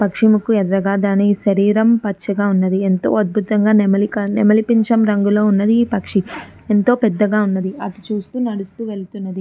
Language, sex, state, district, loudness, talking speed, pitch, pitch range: Telugu, female, Andhra Pradesh, Chittoor, -16 LUFS, 145 wpm, 205 Hz, 195-215 Hz